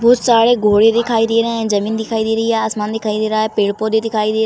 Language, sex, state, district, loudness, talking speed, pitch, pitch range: Hindi, female, Uttar Pradesh, Jalaun, -15 LUFS, 280 wpm, 220 Hz, 215-230 Hz